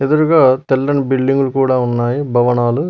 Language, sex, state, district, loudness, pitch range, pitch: Telugu, male, Telangana, Mahabubabad, -14 LUFS, 125-140 Hz, 135 Hz